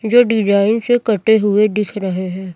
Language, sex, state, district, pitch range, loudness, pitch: Hindi, female, Chhattisgarh, Raipur, 200-225 Hz, -15 LUFS, 210 Hz